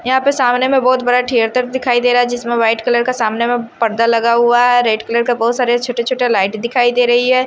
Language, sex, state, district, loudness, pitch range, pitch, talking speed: Hindi, male, Odisha, Nuapada, -14 LUFS, 235-250 Hz, 245 Hz, 265 wpm